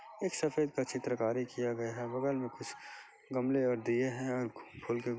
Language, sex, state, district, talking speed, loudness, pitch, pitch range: Hindi, male, Chhattisgarh, Bastar, 195 wpm, -35 LUFS, 125 Hz, 120-135 Hz